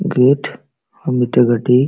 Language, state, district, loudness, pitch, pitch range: Santali, Jharkhand, Sahebganj, -15 LUFS, 125 Hz, 125-135 Hz